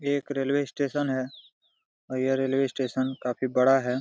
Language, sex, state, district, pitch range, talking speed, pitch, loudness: Hindi, male, Jharkhand, Jamtara, 130-140 Hz, 180 wpm, 135 Hz, -27 LUFS